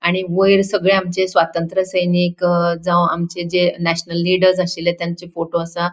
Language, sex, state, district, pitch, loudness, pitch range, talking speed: Konkani, female, Goa, North and South Goa, 175 Hz, -17 LUFS, 170-185 Hz, 150 wpm